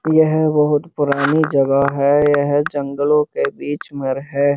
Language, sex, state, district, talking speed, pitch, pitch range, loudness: Hindi, male, Uttar Pradesh, Jyotiba Phule Nagar, 145 wpm, 145 Hz, 140-150 Hz, -17 LUFS